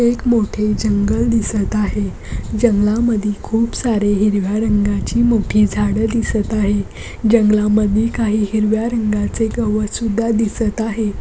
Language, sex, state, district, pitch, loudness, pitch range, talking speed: Marathi, female, Maharashtra, Pune, 215 Hz, -17 LUFS, 210-230 Hz, 120 wpm